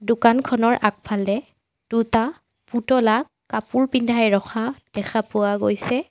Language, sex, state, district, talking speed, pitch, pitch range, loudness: Assamese, female, Assam, Sonitpur, 100 wpm, 230 Hz, 210-250 Hz, -21 LUFS